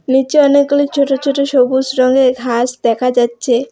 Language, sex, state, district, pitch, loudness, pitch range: Bengali, female, West Bengal, Alipurduar, 260 Hz, -13 LUFS, 250-280 Hz